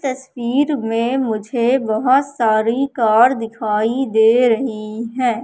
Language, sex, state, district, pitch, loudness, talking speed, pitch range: Hindi, female, Madhya Pradesh, Katni, 235 Hz, -17 LUFS, 110 wpm, 225-260 Hz